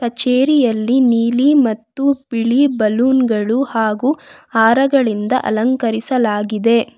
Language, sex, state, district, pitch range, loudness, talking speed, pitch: Kannada, female, Karnataka, Bangalore, 225-265 Hz, -15 LUFS, 75 wpm, 240 Hz